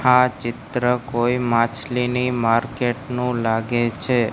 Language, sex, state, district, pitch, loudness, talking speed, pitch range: Gujarati, male, Gujarat, Gandhinagar, 125 Hz, -21 LUFS, 110 wpm, 120-125 Hz